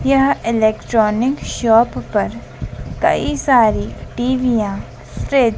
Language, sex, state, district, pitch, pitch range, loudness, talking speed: Hindi, female, Madhya Pradesh, Dhar, 240 Hz, 220-260 Hz, -16 LUFS, 95 wpm